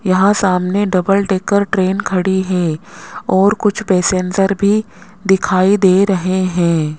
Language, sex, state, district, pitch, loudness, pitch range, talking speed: Hindi, male, Rajasthan, Jaipur, 190 Hz, -14 LUFS, 185-200 Hz, 130 wpm